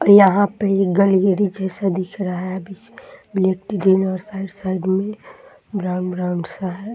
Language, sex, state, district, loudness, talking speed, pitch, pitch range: Hindi, female, Bihar, Muzaffarpur, -19 LUFS, 190 wpm, 190 Hz, 185-200 Hz